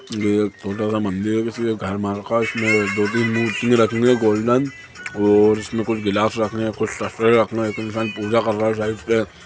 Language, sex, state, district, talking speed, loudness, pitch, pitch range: Hindi, male, Chhattisgarh, Sukma, 215 wpm, -20 LUFS, 110 Hz, 105-115 Hz